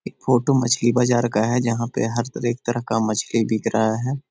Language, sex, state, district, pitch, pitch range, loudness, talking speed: Magahi, male, Bihar, Jahanabad, 120 Hz, 115-125 Hz, -21 LUFS, 265 wpm